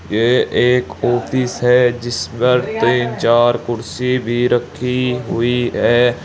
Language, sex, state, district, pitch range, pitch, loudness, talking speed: Hindi, male, Uttar Pradesh, Saharanpur, 120-125 Hz, 120 Hz, -16 LUFS, 125 wpm